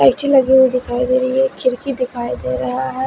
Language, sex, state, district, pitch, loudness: Hindi, female, Himachal Pradesh, Shimla, 255 Hz, -16 LUFS